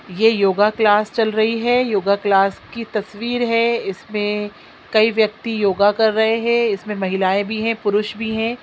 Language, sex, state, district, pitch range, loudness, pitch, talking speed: Hindi, female, Chhattisgarh, Sukma, 205-225 Hz, -18 LUFS, 215 Hz, 175 wpm